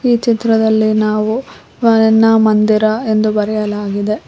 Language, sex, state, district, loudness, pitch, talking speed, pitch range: Kannada, female, Karnataka, Koppal, -13 LUFS, 215 Hz, 85 wpm, 215-225 Hz